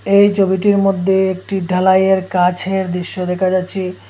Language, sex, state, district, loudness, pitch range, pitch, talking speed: Bengali, male, Assam, Hailakandi, -15 LUFS, 185-195 Hz, 190 Hz, 130 wpm